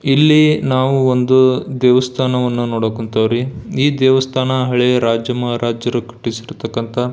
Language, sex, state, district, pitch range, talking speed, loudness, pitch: Kannada, male, Karnataka, Belgaum, 120-130 Hz, 110 wpm, -15 LUFS, 125 Hz